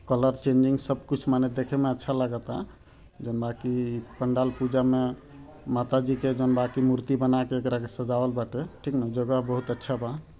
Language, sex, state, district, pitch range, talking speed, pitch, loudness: Bhojpuri, male, Bihar, Gopalganj, 125-130 Hz, 165 wpm, 130 Hz, -27 LUFS